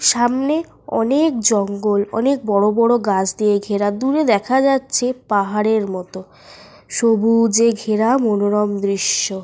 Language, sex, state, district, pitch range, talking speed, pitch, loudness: Bengali, female, Jharkhand, Sahebganj, 205-245 Hz, 115 wpm, 220 Hz, -17 LUFS